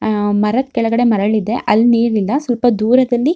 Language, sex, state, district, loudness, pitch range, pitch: Kannada, female, Karnataka, Shimoga, -14 LUFS, 215-245 Hz, 230 Hz